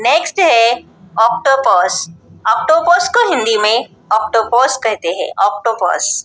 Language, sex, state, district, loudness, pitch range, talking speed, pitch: Hindi, male, Bihar, Katihar, -13 LUFS, 205-310 Hz, 115 wpm, 230 Hz